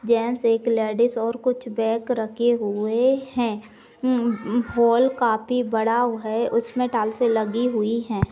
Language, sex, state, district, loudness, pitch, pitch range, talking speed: Hindi, female, Maharashtra, Sindhudurg, -22 LUFS, 235 Hz, 225-245 Hz, 130 wpm